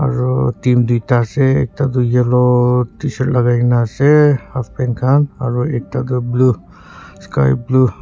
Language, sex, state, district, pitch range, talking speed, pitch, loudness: Nagamese, male, Nagaland, Kohima, 120-130 Hz, 140 wpm, 125 Hz, -15 LUFS